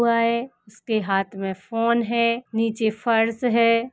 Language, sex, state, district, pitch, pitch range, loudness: Hindi, female, Uttar Pradesh, Etah, 230 Hz, 220-235 Hz, -22 LUFS